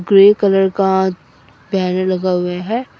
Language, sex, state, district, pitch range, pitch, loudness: Hindi, female, Assam, Sonitpur, 180-195 Hz, 190 Hz, -15 LUFS